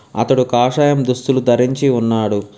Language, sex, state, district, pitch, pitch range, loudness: Telugu, male, Telangana, Hyderabad, 125 Hz, 115-135 Hz, -15 LUFS